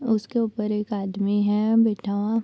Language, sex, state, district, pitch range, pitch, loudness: Hindi, female, Bihar, Kishanganj, 205-225 Hz, 210 Hz, -23 LUFS